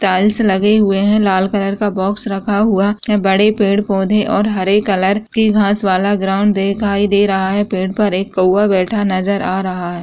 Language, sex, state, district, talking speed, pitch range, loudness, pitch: Hindi, female, Uttar Pradesh, Muzaffarnagar, 210 wpm, 190-210 Hz, -14 LUFS, 200 Hz